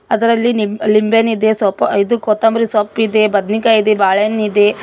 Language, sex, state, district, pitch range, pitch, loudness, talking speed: Kannada, female, Karnataka, Koppal, 210-225 Hz, 215 Hz, -13 LUFS, 135 wpm